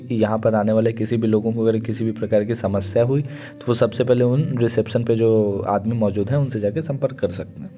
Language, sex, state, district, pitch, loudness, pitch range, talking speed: Hindi, male, Uttar Pradesh, Varanasi, 115 Hz, -20 LUFS, 110-125 Hz, 230 wpm